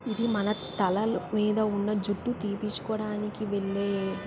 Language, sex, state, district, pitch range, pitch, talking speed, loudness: Telugu, female, Andhra Pradesh, Krishna, 200-215 Hz, 210 Hz, 110 wpm, -29 LUFS